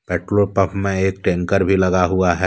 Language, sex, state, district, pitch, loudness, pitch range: Hindi, male, Jharkhand, Deoghar, 95 Hz, -18 LUFS, 90-100 Hz